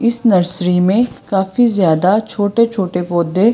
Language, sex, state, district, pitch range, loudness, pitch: Hindi, female, Delhi, New Delhi, 180-230 Hz, -15 LUFS, 195 Hz